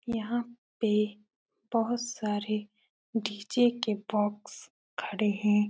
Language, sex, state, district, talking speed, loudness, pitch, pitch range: Hindi, female, Uttar Pradesh, Etah, 95 wpm, -31 LUFS, 215 Hz, 210-235 Hz